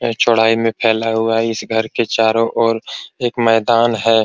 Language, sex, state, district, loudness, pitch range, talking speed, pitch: Hindi, male, Bihar, Araria, -15 LUFS, 110-115 Hz, 195 wpm, 115 Hz